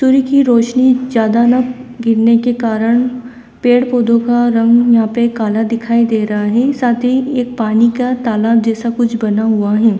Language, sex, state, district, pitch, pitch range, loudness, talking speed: Hindi, female, Uttar Pradesh, Lalitpur, 235 Hz, 225-245 Hz, -13 LUFS, 180 wpm